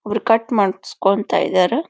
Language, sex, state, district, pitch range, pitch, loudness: Kannada, female, Karnataka, Bijapur, 195-225 Hz, 210 Hz, -18 LUFS